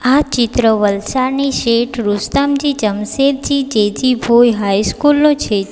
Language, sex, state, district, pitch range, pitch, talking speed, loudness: Gujarati, female, Gujarat, Valsad, 210-275 Hz, 240 Hz, 125 wpm, -14 LUFS